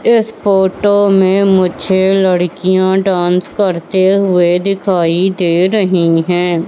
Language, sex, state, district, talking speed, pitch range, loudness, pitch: Hindi, female, Madhya Pradesh, Katni, 110 wpm, 180-195 Hz, -12 LUFS, 185 Hz